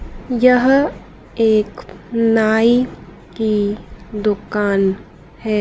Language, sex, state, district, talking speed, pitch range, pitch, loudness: Hindi, female, Madhya Pradesh, Dhar, 65 wpm, 210-235 Hz, 220 Hz, -17 LUFS